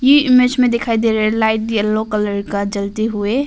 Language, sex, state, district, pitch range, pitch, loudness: Hindi, female, Arunachal Pradesh, Papum Pare, 210-240 Hz, 220 Hz, -16 LUFS